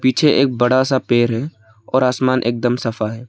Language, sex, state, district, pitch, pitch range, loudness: Hindi, male, Arunachal Pradesh, Lower Dibang Valley, 125 Hz, 120-130 Hz, -17 LUFS